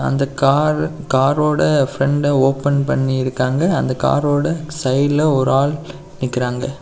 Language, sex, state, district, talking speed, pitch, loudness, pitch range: Tamil, male, Tamil Nadu, Kanyakumari, 105 wpm, 140 Hz, -17 LUFS, 135-150 Hz